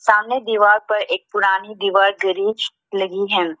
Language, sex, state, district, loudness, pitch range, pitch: Hindi, female, Arunachal Pradesh, Lower Dibang Valley, -18 LUFS, 195-215 Hz, 205 Hz